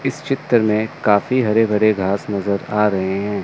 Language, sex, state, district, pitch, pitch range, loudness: Hindi, male, Chandigarh, Chandigarh, 105 Hz, 100-115 Hz, -18 LUFS